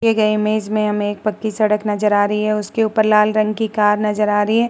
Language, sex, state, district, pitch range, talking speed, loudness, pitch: Hindi, female, Uttar Pradesh, Muzaffarnagar, 210-215 Hz, 280 wpm, -17 LUFS, 215 Hz